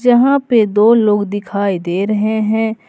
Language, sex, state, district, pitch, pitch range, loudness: Hindi, female, Jharkhand, Ranchi, 215 Hz, 205-230 Hz, -14 LUFS